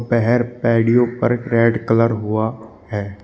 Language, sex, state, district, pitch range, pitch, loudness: Hindi, male, Uttar Pradesh, Shamli, 110-120 Hz, 115 Hz, -18 LUFS